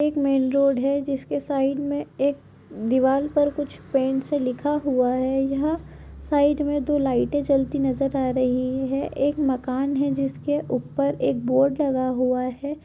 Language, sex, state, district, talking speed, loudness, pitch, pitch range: Hindi, female, Chhattisgarh, Korba, 170 wpm, -23 LUFS, 275 Hz, 260-290 Hz